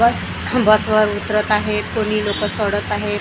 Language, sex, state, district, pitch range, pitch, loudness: Marathi, female, Maharashtra, Gondia, 210-215 Hz, 210 Hz, -18 LUFS